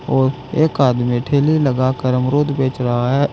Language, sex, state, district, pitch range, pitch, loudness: Hindi, male, Uttar Pradesh, Saharanpur, 125-145 Hz, 130 Hz, -17 LUFS